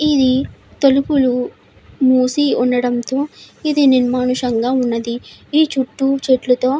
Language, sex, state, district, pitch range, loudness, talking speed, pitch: Telugu, female, Andhra Pradesh, Chittoor, 250-275 Hz, -16 LUFS, 95 wpm, 260 Hz